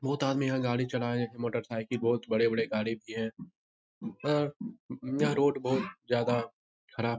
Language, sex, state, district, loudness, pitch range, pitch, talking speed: Hindi, male, Bihar, Jahanabad, -31 LUFS, 115-135 Hz, 120 Hz, 165 wpm